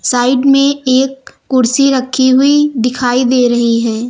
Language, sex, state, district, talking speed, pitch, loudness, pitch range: Hindi, female, Uttar Pradesh, Lucknow, 145 wpm, 255 Hz, -11 LUFS, 245-270 Hz